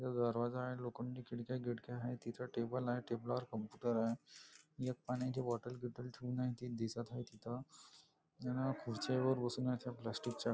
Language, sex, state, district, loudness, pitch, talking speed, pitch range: Marathi, male, Maharashtra, Nagpur, -42 LUFS, 125 Hz, 170 wpm, 120-125 Hz